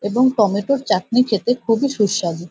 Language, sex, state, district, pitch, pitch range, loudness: Bengali, female, West Bengal, North 24 Parganas, 220 Hz, 200-250 Hz, -18 LUFS